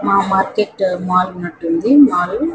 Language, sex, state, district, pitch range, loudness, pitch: Telugu, female, Andhra Pradesh, Anantapur, 180-210 Hz, -15 LUFS, 190 Hz